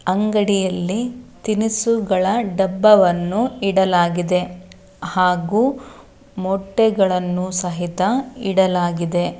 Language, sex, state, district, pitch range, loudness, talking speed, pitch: Kannada, female, Karnataka, Dharwad, 180-220 Hz, -18 LUFS, 50 wpm, 190 Hz